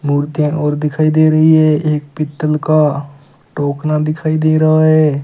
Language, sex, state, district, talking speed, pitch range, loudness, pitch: Hindi, male, Rajasthan, Bikaner, 160 wpm, 150-155 Hz, -13 LUFS, 155 Hz